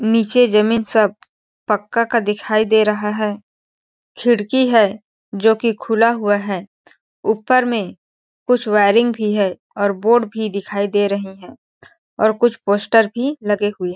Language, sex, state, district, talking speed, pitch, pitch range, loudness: Hindi, female, Chhattisgarh, Balrampur, 155 wpm, 215 Hz, 205-230 Hz, -17 LUFS